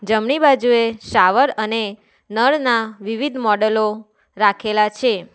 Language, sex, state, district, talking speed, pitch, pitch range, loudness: Gujarati, female, Gujarat, Valsad, 100 wpm, 220 Hz, 210-245 Hz, -17 LUFS